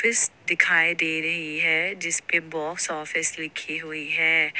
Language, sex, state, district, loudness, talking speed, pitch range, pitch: Hindi, female, Jharkhand, Ranchi, -23 LUFS, 145 wpm, 155-165 Hz, 160 Hz